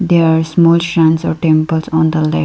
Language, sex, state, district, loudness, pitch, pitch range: English, female, Arunachal Pradesh, Lower Dibang Valley, -12 LUFS, 160 Hz, 160-170 Hz